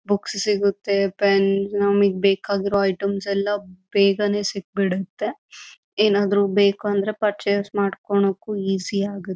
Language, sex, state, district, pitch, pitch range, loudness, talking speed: Kannada, female, Karnataka, Bellary, 200 Hz, 195-205 Hz, -21 LUFS, 110 wpm